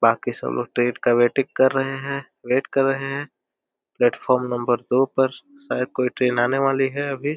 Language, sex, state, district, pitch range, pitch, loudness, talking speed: Hindi, male, Uttar Pradesh, Deoria, 120-135 Hz, 130 Hz, -22 LUFS, 195 wpm